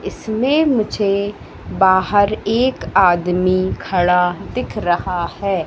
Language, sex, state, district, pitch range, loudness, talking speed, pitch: Hindi, female, Madhya Pradesh, Katni, 180-215 Hz, -17 LUFS, 95 wpm, 195 Hz